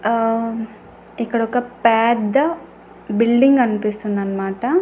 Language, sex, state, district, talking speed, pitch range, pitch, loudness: Telugu, female, Andhra Pradesh, Annamaya, 60 wpm, 215-245 Hz, 230 Hz, -18 LUFS